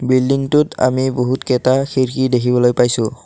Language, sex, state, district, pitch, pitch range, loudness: Assamese, male, Assam, Kamrup Metropolitan, 130 Hz, 125-130 Hz, -16 LUFS